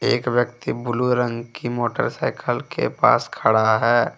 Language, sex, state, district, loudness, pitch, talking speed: Hindi, male, Jharkhand, Ranchi, -21 LUFS, 120 Hz, 145 wpm